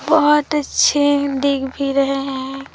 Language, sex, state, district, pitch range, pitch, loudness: Hindi, female, Chhattisgarh, Raipur, 275-295 Hz, 280 Hz, -17 LUFS